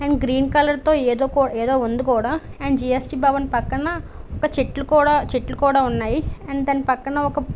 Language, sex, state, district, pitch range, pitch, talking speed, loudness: Telugu, female, Andhra Pradesh, Visakhapatnam, 260-290 Hz, 275 Hz, 175 wpm, -20 LUFS